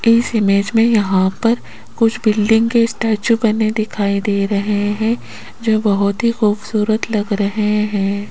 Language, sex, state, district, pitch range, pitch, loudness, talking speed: Hindi, female, Rajasthan, Jaipur, 205-225 Hz, 215 Hz, -16 LUFS, 145 wpm